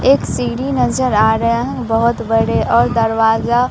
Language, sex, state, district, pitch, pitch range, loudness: Hindi, female, Bihar, Katihar, 230 Hz, 225-250 Hz, -15 LUFS